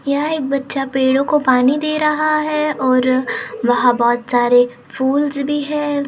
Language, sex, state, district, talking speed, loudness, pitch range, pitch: Hindi, male, Maharashtra, Gondia, 160 wpm, -16 LUFS, 255-295 Hz, 275 Hz